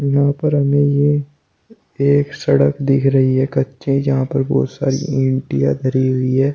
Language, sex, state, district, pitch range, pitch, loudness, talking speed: Hindi, male, Uttar Pradesh, Shamli, 130-140 Hz, 135 Hz, -16 LUFS, 165 wpm